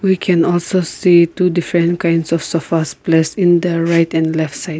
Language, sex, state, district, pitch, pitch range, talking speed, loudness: English, female, Nagaland, Kohima, 170 Hz, 165-175 Hz, 200 wpm, -15 LUFS